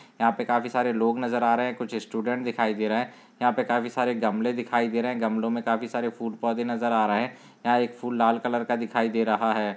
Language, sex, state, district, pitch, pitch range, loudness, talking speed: Hindi, male, Maharashtra, Nagpur, 120 Hz, 115-120 Hz, -26 LUFS, 270 wpm